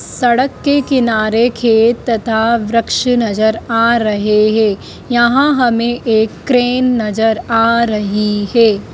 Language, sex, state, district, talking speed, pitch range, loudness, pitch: Hindi, female, Madhya Pradesh, Dhar, 120 wpm, 220-245 Hz, -13 LUFS, 230 Hz